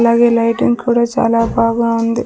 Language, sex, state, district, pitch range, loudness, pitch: Telugu, female, Andhra Pradesh, Sri Satya Sai, 230-235 Hz, -14 LUFS, 235 Hz